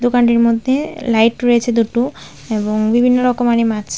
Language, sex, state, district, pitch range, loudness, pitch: Bengali, female, Tripura, West Tripura, 225-245 Hz, -15 LUFS, 235 Hz